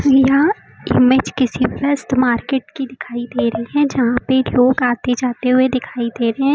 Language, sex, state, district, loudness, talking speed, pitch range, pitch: Hindi, female, Uttar Pradesh, Lucknow, -17 LUFS, 185 wpm, 245-270 Hz, 255 Hz